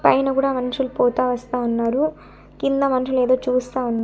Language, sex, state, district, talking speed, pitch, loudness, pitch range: Telugu, female, Andhra Pradesh, Annamaya, 165 wpm, 255 Hz, -21 LUFS, 250-265 Hz